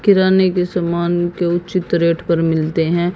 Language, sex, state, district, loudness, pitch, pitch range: Hindi, female, Haryana, Jhajjar, -16 LUFS, 175 Hz, 170-180 Hz